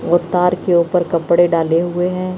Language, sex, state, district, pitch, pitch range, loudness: Hindi, male, Chandigarh, Chandigarh, 175 Hz, 170-180 Hz, -15 LUFS